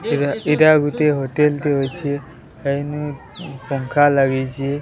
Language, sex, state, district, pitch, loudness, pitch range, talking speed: Odia, male, Odisha, Sambalpur, 145 Hz, -18 LUFS, 135-150 Hz, 100 wpm